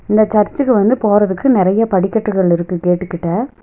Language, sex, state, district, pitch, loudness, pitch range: Tamil, female, Tamil Nadu, Nilgiris, 205 Hz, -14 LUFS, 185-220 Hz